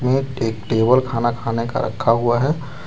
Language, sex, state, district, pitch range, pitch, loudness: Hindi, male, Jharkhand, Deoghar, 115-135 Hz, 120 Hz, -19 LUFS